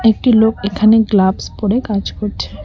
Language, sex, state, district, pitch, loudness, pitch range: Bengali, female, West Bengal, Cooch Behar, 210 Hz, -14 LUFS, 190-225 Hz